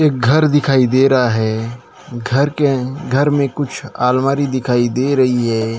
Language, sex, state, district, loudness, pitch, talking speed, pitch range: Hindi, male, Maharashtra, Gondia, -15 LUFS, 130 Hz, 165 wpm, 120-140 Hz